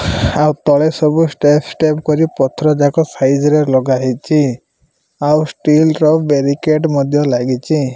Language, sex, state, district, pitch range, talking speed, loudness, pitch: Odia, male, Odisha, Malkangiri, 135-155 Hz, 130 wpm, -13 LUFS, 150 Hz